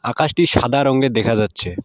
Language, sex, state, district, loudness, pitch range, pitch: Bengali, male, West Bengal, Alipurduar, -16 LUFS, 110-140 Hz, 120 Hz